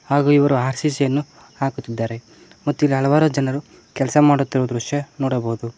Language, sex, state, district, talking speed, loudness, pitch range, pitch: Kannada, male, Karnataka, Koppal, 135 wpm, -19 LUFS, 130-145 Hz, 135 Hz